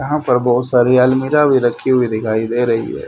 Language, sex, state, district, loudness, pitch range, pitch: Hindi, male, Haryana, Rohtak, -15 LUFS, 120-130 Hz, 125 Hz